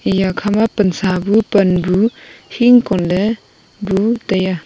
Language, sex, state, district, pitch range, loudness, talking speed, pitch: Wancho, female, Arunachal Pradesh, Longding, 185-220 Hz, -15 LUFS, 140 wpm, 200 Hz